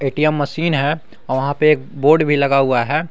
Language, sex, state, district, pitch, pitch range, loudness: Hindi, male, Jharkhand, Garhwa, 145 Hz, 140-155 Hz, -16 LUFS